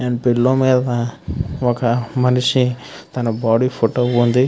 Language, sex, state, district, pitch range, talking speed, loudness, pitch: Telugu, male, Andhra Pradesh, Krishna, 120-125 Hz, 105 wpm, -17 LUFS, 125 Hz